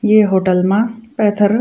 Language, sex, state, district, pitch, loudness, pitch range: Garhwali, female, Uttarakhand, Tehri Garhwal, 210 Hz, -15 LUFS, 195-225 Hz